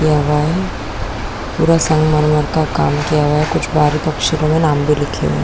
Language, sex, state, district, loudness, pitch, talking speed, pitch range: Hindi, female, Chhattisgarh, Korba, -15 LUFS, 150 Hz, 185 wpm, 145-155 Hz